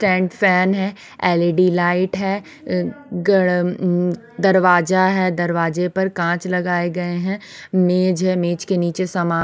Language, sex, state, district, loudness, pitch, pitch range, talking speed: Hindi, female, Chandigarh, Chandigarh, -18 LUFS, 180 Hz, 175-190 Hz, 145 wpm